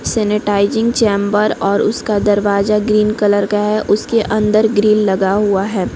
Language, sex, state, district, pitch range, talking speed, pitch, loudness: Hindi, female, Chhattisgarh, Korba, 205-215 Hz, 150 wpm, 210 Hz, -14 LUFS